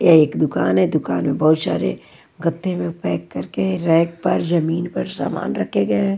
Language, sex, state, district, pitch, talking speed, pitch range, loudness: Hindi, female, Punjab, Pathankot, 165 Hz, 195 wpm, 155-175 Hz, -19 LUFS